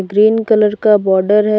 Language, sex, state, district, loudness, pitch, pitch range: Hindi, female, Jharkhand, Deoghar, -12 LUFS, 210 Hz, 205-215 Hz